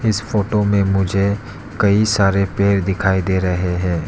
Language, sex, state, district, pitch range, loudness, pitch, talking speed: Hindi, male, Arunachal Pradesh, Lower Dibang Valley, 95-105 Hz, -17 LUFS, 100 Hz, 160 wpm